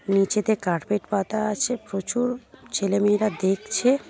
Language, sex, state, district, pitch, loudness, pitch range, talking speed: Bengali, female, West Bengal, Paschim Medinipur, 210 Hz, -24 LUFS, 195-220 Hz, 100 wpm